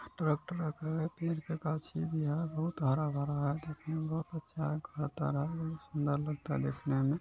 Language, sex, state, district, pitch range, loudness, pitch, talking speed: Hindi, male, Bihar, Gopalganj, 145-160 Hz, -36 LUFS, 155 Hz, 185 wpm